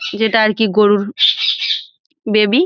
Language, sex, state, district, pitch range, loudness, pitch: Bengali, female, West Bengal, Jalpaiguri, 210-330 Hz, -14 LUFS, 220 Hz